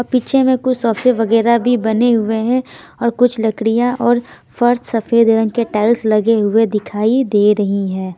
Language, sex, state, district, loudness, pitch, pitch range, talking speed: Hindi, female, Bihar, Patna, -15 LUFS, 230 Hz, 220-245 Hz, 175 wpm